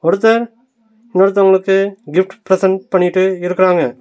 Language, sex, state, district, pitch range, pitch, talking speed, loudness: Tamil, male, Tamil Nadu, Nilgiris, 185-200 Hz, 190 Hz, 90 wpm, -14 LUFS